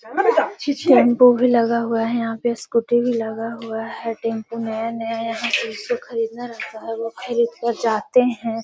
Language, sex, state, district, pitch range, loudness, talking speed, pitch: Magahi, female, Bihar, Gaya, 225-240 Hz, -20 LUFS, 200 wpm, 230 Hz